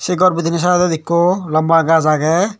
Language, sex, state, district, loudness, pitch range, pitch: Chakma, male, Tripura, Dhalai, -14 LUFS, 160-180 Hz, 170 Hz